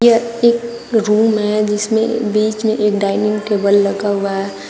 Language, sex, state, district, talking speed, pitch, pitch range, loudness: Hindi, female, Uttar Pradesh, Shamli, 165 wpm, 210 Hz, 205-225 Hz, -15 LUFS